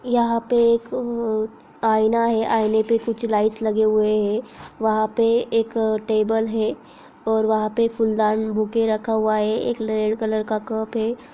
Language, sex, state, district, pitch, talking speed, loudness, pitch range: Hindi, female, Bihar, Sitamarhi, 220 Hz, 180 wpm, -21 LUFS, 215-230 Hz